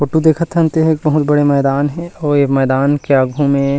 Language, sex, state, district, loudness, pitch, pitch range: Chhattisgarhi, male, Chhattisgarh, Rajnandgaon, -14 LUFS, 145 Hz, 140-160 Hz